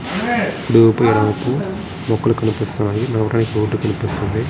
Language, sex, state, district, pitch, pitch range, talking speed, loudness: Telugu, male, Andhra Pradesh, Srikakulam, 110 Hz, 110-115 Hz, 65 wpm, -17 LUFS